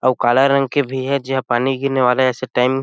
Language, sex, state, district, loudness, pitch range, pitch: Chhattisgarhi, male, Chhattisgarh, Sarguja, -17 LUFS, 130-135 Hz, 130 Hz